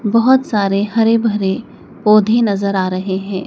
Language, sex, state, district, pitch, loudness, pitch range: Hindi, male, Madhya Pradesh, Dhar, 210 Hz, -15 LUFS, 195-230 Hz